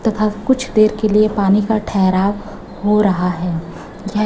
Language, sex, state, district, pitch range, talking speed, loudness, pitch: Hindi, female, Chhattisgarh, Raipur, 195-215 Hz, 170 wpm, -16 LUFS, 210 Hz